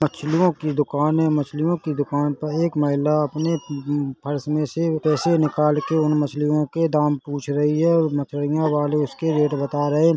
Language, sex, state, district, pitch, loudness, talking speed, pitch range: Hindi, male, Chhattisgarh, Korba, 150 Hz, -21 LUFS, 190 wpm, 145-155 Hz